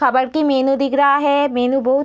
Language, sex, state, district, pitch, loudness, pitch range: Hindi, female, Uttar Pradesh, Deoria, 275 Hz, -16 LUFS, 260-285 Hz